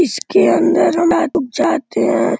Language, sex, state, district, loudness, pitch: Hindi, male, Uttar Pradesh, Gorakhpur, -15 LUFS, 315 Hz